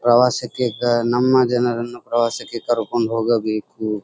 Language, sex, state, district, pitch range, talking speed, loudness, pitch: Kannada, male, Karnataka, Dharwad, 115-120 Hz, 105 wpm, -19 LUFS, 120 Hz